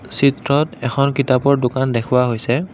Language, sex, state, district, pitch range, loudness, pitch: Assamese, male, Assam, Kamrup Metropolitan, 125-140 Hz, -17 LUFS, 130 Hz